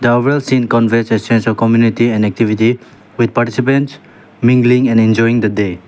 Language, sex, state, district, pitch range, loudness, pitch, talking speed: English, male, Nagaland, Dimapur, 115-125 Hz, -13 LUFS, 115 Hz, 155 wpm